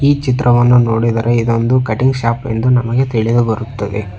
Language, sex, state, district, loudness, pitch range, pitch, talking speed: Kannada, male, Karnataka, Bangalore, -14 LUFS, 115-125 Hz, 115 Hz, 130 wpm